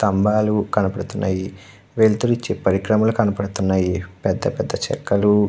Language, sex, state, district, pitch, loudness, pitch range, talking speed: Telugu, male, Andhra Pradesh, Krishna, 100 Hz, -20 LUFS, 95-105 Hz, 100 wpm